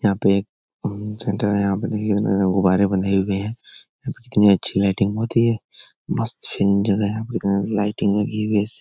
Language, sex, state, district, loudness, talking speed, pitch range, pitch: Hindi, male, Bihar, Jahanabad, -20 LUFS, 175 wpm, 100-105 Hz, 100 Hz